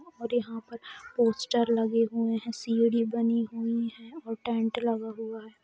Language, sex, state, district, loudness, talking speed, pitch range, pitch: Hindi, female, Jharkhand, Jamtara, -29 LUFS, 170 wpm, 225-235 Hz, 230 Hz